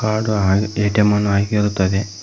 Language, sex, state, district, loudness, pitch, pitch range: Kannada, male, Karnataka, Koppal, -17 LUFS, 105 Hz, 100-105 Hz